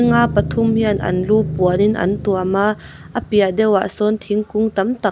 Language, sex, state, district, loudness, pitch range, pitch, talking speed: Mizo, female, Mizoram, Aizawl, -17 LUFS, 195-220 Hz, 210 Hz, 190 wpm